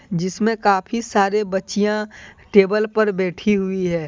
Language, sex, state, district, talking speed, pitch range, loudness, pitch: Hindi, male, Jharkhand, Deoghar, 130 wpm, 190-215 Hz, -19 LUFS, 205 Hz